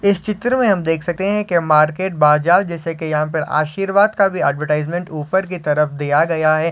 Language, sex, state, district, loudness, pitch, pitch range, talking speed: Hindi, male, Maharashtra, Solapur, -17 LUFS, 165 Hz, 155-195 Hz, 215 wpm